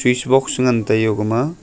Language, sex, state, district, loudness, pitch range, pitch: Wancho, male, Arunachal Pradesh, Longding, -17 LUFS, 110-130 Hz, 125 Hz